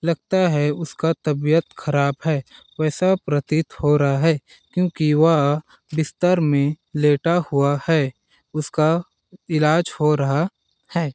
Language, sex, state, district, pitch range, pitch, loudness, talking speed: Hindi, male, Chhattisgarh, Balrampur, 145-165 Hz, 155 Hz, -20 LUFS, 125 wpm